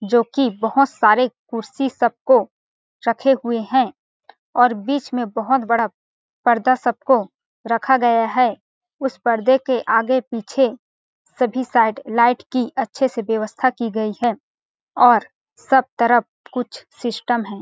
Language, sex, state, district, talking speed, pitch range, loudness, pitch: Hindi, female, Chhattisgarh, Balrampur, 135 wpm, 230-265 Hz, -19 LUFS, 240 Hz